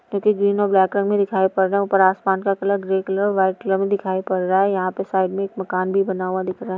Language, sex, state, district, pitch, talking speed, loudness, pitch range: Hindi, female, Uttar Pradesh, Etah, 190 Hz, 265 wpm, -20 LUFS, 190-200 Hz